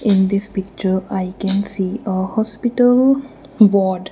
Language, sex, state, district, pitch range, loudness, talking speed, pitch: English, female, Punjab, Kapurthala, 190-220 Hz, -17 LUFS, 130 wpm, 200 Hz